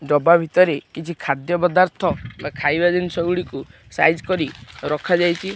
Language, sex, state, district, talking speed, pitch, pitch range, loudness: Odia, male, Odisha, Khordha, 140 wpm, 165 Hz, 145-175 Hz, -19 LUFS